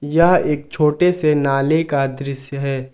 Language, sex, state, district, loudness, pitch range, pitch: Hindi, male, Jharkhand, Garhwa, -18 LUFS, 140-160 Hz, 145 Hz